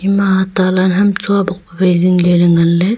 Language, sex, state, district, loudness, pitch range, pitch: Wancho, female, Arunachal Pradesh, Longding, -12 LUFS, 175-195 Hz, 185 Hz